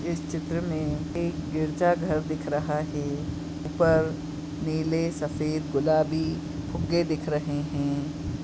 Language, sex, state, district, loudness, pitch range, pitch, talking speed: Hindi, male, Chhattisgarh, Bastar, -28 LUFS, 150-160 Hz, 150 Hz, 115 wpm